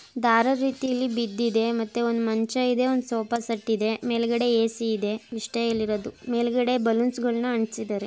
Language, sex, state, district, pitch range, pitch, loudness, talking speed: Kannada, female, Karnataka, Gulbarga, 225-245 Hz, 230 Hz, -25 LUFS, 150 wpm